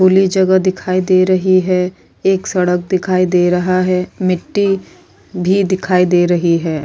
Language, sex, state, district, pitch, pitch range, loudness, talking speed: Hindi, female, Maharashtra, Chandrapur, 185 Hz, 180-185 Hz, -14 LUFS, 160 wpm